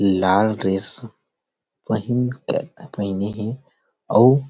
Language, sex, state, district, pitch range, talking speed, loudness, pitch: Chhattisgarhi, male, Chhattisgarh, Rajnandgaon, 100-125 Hz, 105 wpm, -21 LUFS, 110 Hz